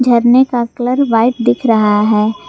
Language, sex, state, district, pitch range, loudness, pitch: Hindi, female, Jharkhand, Garhwa, 225-250 Hz, -12 LUFS, 240 Hz